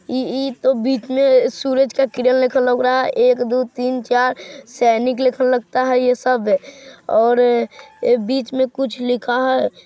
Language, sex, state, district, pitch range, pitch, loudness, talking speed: Hindi, female, Bihar, Vaishali, 250-270 Hz, 255 Hz, -17 LUFS, 145 wpm